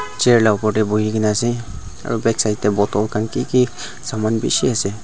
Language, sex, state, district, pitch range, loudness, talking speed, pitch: Nagamese, male, Nagaland, Dimapur, 105-120 Hz, -18 LUFS, 180 wpm, 110 Hz